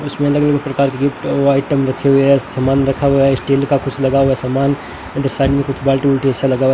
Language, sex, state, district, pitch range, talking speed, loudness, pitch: Hindi, male, Rajasthan, Bikaner, 135-140 Hz, 275 wpm, -15 LUFS, 135 Hz